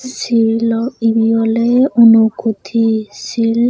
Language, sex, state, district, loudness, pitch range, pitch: Chakma, female, Tripura, Unakoti, -13 LUFS, 225-235 Hz, 230 Hz